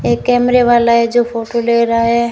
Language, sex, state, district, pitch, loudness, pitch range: Hindi, female, Rajasthan, Bikaner, 235 Hz, -13 LUFS, 230-240 Hz